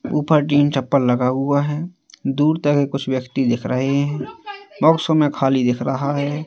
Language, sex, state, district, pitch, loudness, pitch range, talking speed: Hindi, male, Madhya Pradesh, Katni, 145 Hz, -19 LUFS, 135-150 Hz, 175 wpm